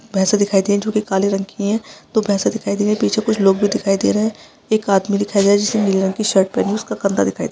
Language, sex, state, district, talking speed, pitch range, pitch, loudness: Hindi, female, Maharashtra, Sindhudurg, 325 wpm, 195-215 Hz, 205 Hz, -17 LUFS